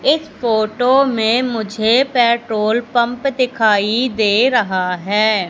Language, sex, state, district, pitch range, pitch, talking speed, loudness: Hindi, female, Madhya Pradesh, Katni, 215-250 Hz, 230 Hz, 110 wpm, -15 LUFS